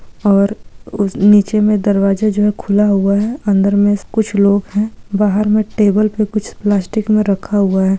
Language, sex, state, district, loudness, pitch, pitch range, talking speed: Hindi, female, Andhra Pradesh, Guntur, -14 LUFS, 205 Hz, 200-210 Hz, 210 wpm